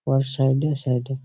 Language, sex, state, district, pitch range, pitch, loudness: Bengali, male, West Bengal, Malda, 130-135 Hz, 135 Hz, -22 LUFS